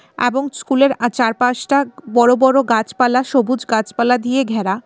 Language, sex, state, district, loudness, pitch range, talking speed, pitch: Bengali, female, Tripura, West Tripura, -16 LUFS, 235-265 Hz, 135 wpm, 250 Hz